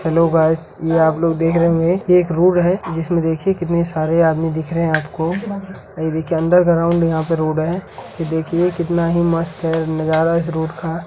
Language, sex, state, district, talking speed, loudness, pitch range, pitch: Hindi, female, Bihar, Gaya, 190 wpm, -17 LUFS, 160-170 Hz, 165 Hz